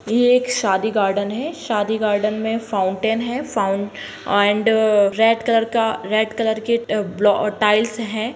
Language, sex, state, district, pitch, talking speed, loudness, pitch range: Hindi, female, Bihar, Madhepura, 220 Hz, 160 wpm, -19 LUFS, 205-230 Hz